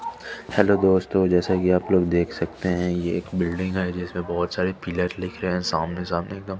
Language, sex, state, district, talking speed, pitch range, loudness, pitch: Hindi, male, Chandigarh, Chandigarh, 210 wpm, 90-95 Hz, -23 LUFS, 90 Hz